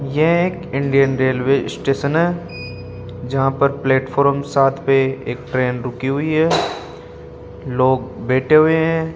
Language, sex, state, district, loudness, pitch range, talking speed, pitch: Hindi, male, Rajasthan, Jaipur, -17 LUFS, 130-150 Hz, 130 wpm, 135 Hz